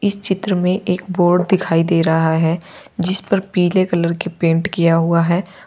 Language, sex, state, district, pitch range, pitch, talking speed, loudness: Hindi, female, Uttar Pradesh, Lalitpur, 170-190 Hz, 180 Hz, 190 wpm, -17 LUFS